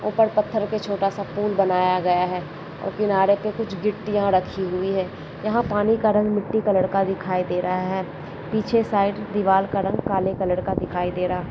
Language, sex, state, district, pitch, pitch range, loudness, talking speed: Kumaoni, female, Uttarakhand, Uttarkashi, 195 Hz, 185-210 Hz, -22 LUFS, 210 wpm